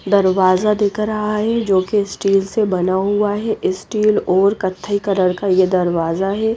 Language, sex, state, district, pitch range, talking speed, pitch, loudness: Hindi, female, Odisha, Nuapada, 185-210 Hz, 175 wpm, 200 Hz, -17 LUFS